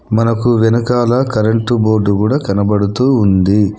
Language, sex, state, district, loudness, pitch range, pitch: Telugu, male, Telangana, Hyderabad, -13 LUFS, 105-120 Hz, 110 Hz